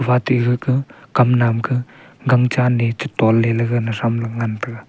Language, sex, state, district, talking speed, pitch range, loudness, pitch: Wancho, male, Arunachal Pradesh, Longding, 195 wpm, 115-125 Hz, -18 LUFS, 120 Hz